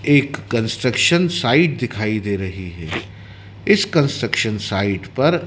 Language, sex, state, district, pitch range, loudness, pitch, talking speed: Hindi, male, Madhya Pradesh, Dhar, 100-145 Hz, -19 LUFS, 115 Hz, 120 wpm